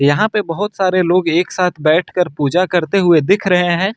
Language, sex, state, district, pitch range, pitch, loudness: Hindi, male, Uttar Pradesh, Lucknow, 165-190 Hz, 180 Hz, -15 LUFS